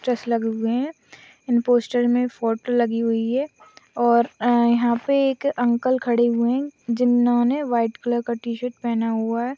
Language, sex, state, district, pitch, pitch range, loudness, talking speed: Hindi, female, Maharashtra, Chandrapur, 240 Hz, 235-250 Hz, -21 LUFS, 155 wpm